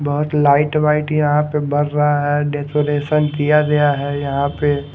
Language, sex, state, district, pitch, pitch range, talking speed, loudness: Hindi, male, Haryana, Charkhi Dadri, 145 Hz, 145-150 Hz, 170 wpm, -17 LUFS